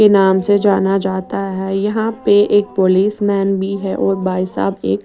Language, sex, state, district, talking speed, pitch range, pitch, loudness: Hindi, female, Bihar, West Champaran, 215 wpm, 190-205 Hz, 195 Hz, -15 LUFS